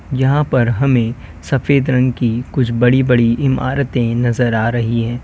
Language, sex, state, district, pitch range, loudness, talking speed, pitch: Hindi, male, Uttar Pradesh, Lalitpur, 115-130 Hz, -15 LUFS, 160 wpm, 125 Hz